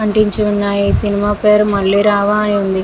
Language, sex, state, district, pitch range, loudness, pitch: Telugu, female, Andhra Pradesh, Visakhapatnam, 200-210 Hz, -13 LUFS, 205 Hz